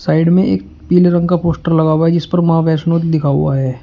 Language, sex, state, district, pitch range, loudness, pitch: Hindi, male, Uttar Pradesh, Shamli, 155-170 Hz, -13 LUFS, 165 Hz